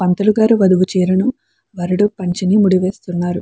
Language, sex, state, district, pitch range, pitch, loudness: Telugu, female, Andhra Pradesh, Chittoor, 185-205 Hz, 185 Hz, -15 LUFS